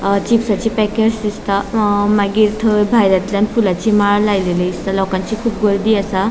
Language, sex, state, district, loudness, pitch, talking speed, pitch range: Konkani, female, Goa, North and South Goa, -15 LUFS, 205 Hz, 150 wpm, 200-220 Hz